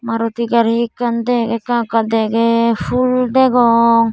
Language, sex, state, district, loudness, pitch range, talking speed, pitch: Chakma, female, Tripura, Dhalai, -15 LUFS, 230-240 Hz, 130 wpm, 230 Hz